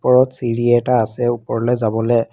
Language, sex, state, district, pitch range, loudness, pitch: Assamese, female, Assam, Kamrup Metropolitan, 115-125 Hz, -17 LUFS, 120 Hz